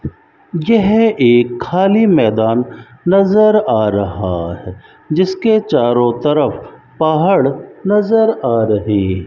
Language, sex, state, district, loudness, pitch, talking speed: Hindi, male, Rajasthan, Bikaner, -14 LUFS, 150 Hz, 95 wpm